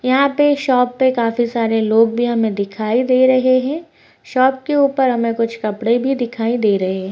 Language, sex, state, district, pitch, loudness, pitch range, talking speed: Hindi, female, Uttar Pradesh, Jalaun, 240 Hz, -16 LUFS, 225-260 Hz, 220 wpm